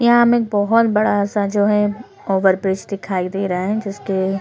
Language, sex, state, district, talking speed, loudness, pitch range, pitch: Hindi, female, Chhattisgarh, Korba, 205 wpm, -18 LUFS, 190-215 Hz, 205 Hz